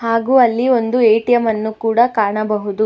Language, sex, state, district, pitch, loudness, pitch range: Kannada, female, Karnataka, Bangalore, 225 Hz, -15 LUFS, 215-240 Hz